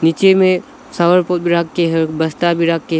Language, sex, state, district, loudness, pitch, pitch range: Hindi, male, Arunachal Pradesh, Lower Dibang Valley, -15 LUFS, 170 Hz, 165-180 Hz